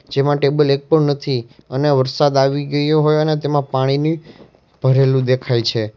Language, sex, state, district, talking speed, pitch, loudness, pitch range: Gujarati, male, Gujarat, Valsad, 160 wpm, 140 Hz, -17 LUFS, 130-150 Hz